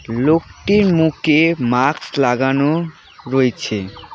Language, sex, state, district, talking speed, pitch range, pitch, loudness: Bengali, male, West Bengal, Alipurduar, 70 wpm, 125-160 Hz, 140 Hz, -16 LUFS